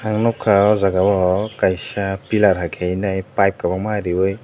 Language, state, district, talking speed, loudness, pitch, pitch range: Kokborok, Tripura, Dhalai, 160 wpm, -18 LUFS, 100 Hz, 95-105 Hz